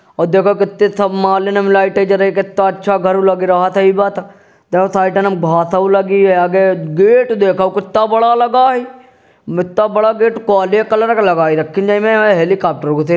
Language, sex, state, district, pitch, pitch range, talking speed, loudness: Hindi, male, Uttar Pradesh, Jyotiba Phule Nagar, 195 Hz, 190-210 Hz, 145 wpm, -12 LUFS